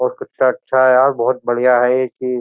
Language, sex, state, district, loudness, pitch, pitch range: Hindi, male, Uttar Pradesh, Jyotiba Phule Nagar, -15 LUFS, 130 Hz, 125-130 Hz